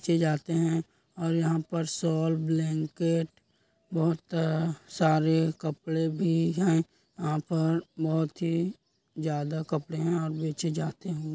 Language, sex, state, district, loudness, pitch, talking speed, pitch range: Hindi, male, Chhattisgarh, Korba, -29 LUFS, 160 Hz, 120 wpm, 160-165 Hz